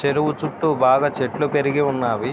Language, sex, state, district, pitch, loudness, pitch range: Telugu, male, Andhra Pradesh, Srikakulam, 145 Hz, -20 LUFS, 130-150 Hz